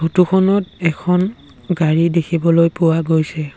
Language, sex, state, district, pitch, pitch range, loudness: Assamese, male, Assam, Sonitpur, 165 Hz, 160-180 Hz, -16 LUFS